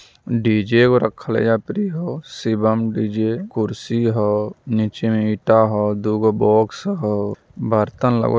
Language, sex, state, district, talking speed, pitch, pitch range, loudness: Magahi, male, Bihar, Jamui, 135 wpm, 110 Hz, 105-115 Hz, -19 LUFS